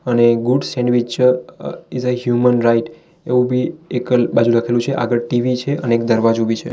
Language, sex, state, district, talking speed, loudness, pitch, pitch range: Gujarati, male, Gujarat, Valsad, 195 wpm, -17 LUFS, 125 Hz, 120-125 Hz